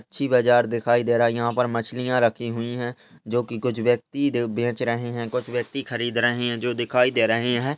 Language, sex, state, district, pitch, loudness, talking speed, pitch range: Hindi, male, Rajasthan, Churu, 120 Hz, -23 LUFS, 215 wpm, 120-125 Hz